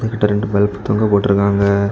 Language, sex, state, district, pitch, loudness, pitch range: Tamil, male, Tamil Nadu, Kanyakumari, 100 Hz, -16 LUFS, 100-105 Hz